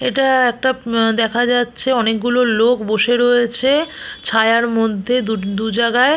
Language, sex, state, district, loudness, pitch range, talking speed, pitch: Bengali, female, West Bengal, Purulia, -16 LUFS, 225-250 Hz, 135 wpm, 240 Hz